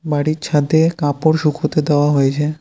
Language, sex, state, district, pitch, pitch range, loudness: Bengali, male, West Bengal, Cooch Behar, 150 Hz, 145-155 Hz, -16 LUFS